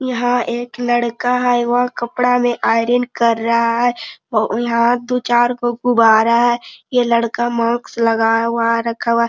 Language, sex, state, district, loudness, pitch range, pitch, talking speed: Hindi, female, Jharkhand, Sahebganj, -16 LUFS, 230-245 Hz, 240 Hz, 160 wpm